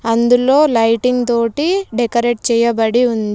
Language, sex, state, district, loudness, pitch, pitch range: Telugu, female, Telangana, Komaram Bheem, -14 LUFS, 235 Hz, 230-250 Hz